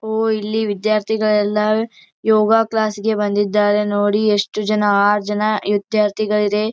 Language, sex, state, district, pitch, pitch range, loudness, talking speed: Kannada, female, Karnataka, Gulbarga, 210 Hz, 205-220 Hz, -17 LUFS, 125 wpm